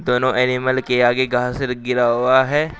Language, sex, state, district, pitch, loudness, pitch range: Hindi, male, Uttar Pradesh, Shamli, 125 Hz, -18 LUFS, 125-130 Hz